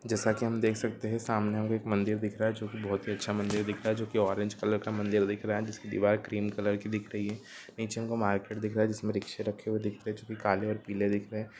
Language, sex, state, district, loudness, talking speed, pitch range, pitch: Hindi, male, Jharkhand, Sahebganj, -32 LUFS, 295 wpm, 105-110 Hz, 105 Hz